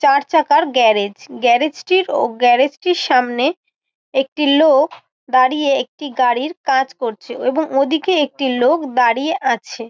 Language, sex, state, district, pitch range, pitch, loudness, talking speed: Bengali, female, West Bengal, Malda, 255-305 Hz, 275 Hz, -16 LUFS, 135 wpm